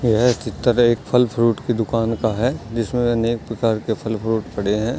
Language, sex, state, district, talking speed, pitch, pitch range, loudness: Hindi, male, Bihar, Jamui, 205 wpm, 115 Hz, 110-120 Hz, -20 LUFS